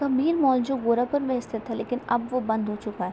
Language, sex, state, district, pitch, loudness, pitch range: Hindi, female, Uttar Pradesh, Gorakhpur, 245 Hz, -25 LUFS, 220-265 Hz